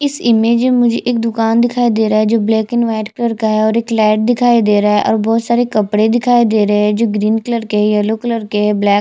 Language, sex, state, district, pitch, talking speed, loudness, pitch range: Hindi, female, Chhattisgarh, Jashpur, 225 Hz, 275 wpm, -13 LUFS, 215-235 Hz